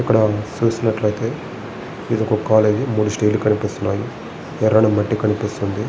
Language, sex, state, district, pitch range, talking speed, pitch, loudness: Telugu, male, Andhra Pradesh, Srikakulam, 105-110 Hz, 120 wpm, 110 Hz, -19 LUFS